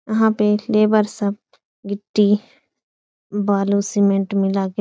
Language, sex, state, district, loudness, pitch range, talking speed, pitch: Hindi, female, Uttar Pradesh, Etah, -19 LUFS, 200-215 Hz, 125 wpm, 205 Hz